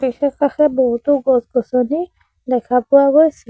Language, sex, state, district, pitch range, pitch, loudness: Assamese, female, Assam, Sonitpur, 250-285 Hz, 265 Hz, -16 LUFS